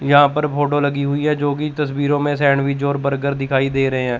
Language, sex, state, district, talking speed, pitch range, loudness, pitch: Hindi, male, Chandigarh, Chandigarh, 230 wpm, 140-145 Hz, -18 LUFS, 140 Hz